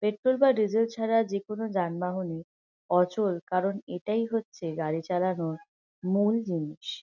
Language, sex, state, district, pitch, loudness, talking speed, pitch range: Bengali, female, West Bengal, North 24 Parganas, 190 Hz, -28 LUFS, 130 wpm, 175-220 Hz